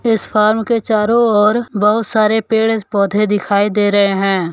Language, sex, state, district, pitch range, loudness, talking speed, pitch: Hindi, male, Jharkhand, Deoghar, 205-225 Hz, -14 LUFS, 170 wpm, 215 Hz